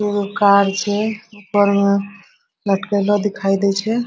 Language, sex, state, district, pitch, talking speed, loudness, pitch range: Hindi, female, Bihar, Araria, 205 Hz, 130 wpm, -17 LUFS, 200-210 Hz